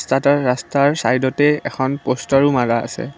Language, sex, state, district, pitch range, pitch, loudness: Assamese, female, Assam, Kamrup Metropolitan, 130-140 Hz, 135 Hz, -17 LUFS